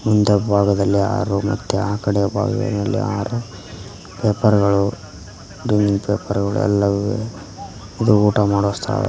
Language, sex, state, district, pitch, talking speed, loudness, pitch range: Kannada, male, Karnataka, Koppal, 100 Hz, 120 wpm, -19 LUFS, 100-105 Hz